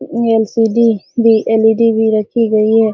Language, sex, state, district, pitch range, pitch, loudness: Hindi, female, Bihar, Araria, 220-230 Hz, 225 Hz, -12 LUFS